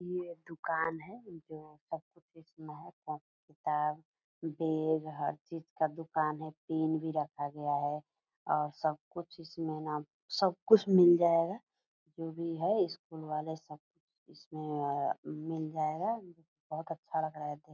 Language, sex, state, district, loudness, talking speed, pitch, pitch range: Hindi, female, Bihar, Purnia, -34 LUFS, 160 wpm, 160 Hz, 155-165 Hz